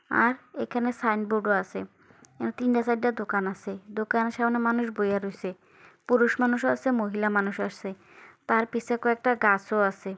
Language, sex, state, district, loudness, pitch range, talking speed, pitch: Bengali, female, West Bengal, Kolkata, -26 LUFS, 200-235 Hz, 160 wpm, 220 Hz